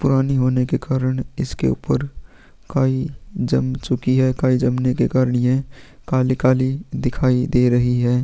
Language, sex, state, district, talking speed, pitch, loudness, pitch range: Hindi, male, Chhattisgarh, Sukma, 155 wpm, 130 Hz, -19 LUFS, 125-135 Hz